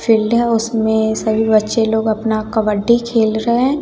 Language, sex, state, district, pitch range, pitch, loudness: Hindi, female, Bihar, West Champaran, 220-230 Hz, 220 Hz, -15 LUFS